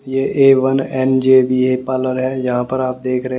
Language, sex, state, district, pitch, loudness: Hindi, male, Haryana, Jhajjar, 130 Hz, -15 LUFS